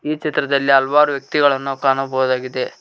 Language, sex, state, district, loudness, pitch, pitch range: Kannada, male, Karnataka, Koppal, -17 LUFS, 135 Hz, 135-145 Hz